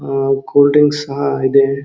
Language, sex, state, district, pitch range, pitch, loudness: Kannada, male, Karnataka, Dharwad, 135-140 Hz, 140 Hz, -14 LUFS